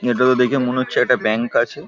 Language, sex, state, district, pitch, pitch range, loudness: Bengali, male, West Bengal, Paschim Medinipur, 125 Hz, 120-130 Hz, -17 LUFS